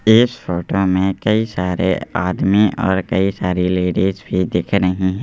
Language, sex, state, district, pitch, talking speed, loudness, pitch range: Hindi, male, Madhya Pradesh, Bhopal, 95 Hz, 160 wpm, -17 LUFS, 90-100 Hz